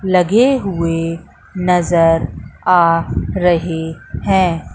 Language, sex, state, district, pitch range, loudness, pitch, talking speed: Hindi, female, Madhya Pradesh, Katni, 165-180 Hz, -15 LUFS, 170 Hz, 75 wpm